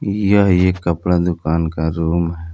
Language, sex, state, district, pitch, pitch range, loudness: Hindi, male, Jharkhand, Palamu, 85 Hz, 80-90 Hz, -17 LUFS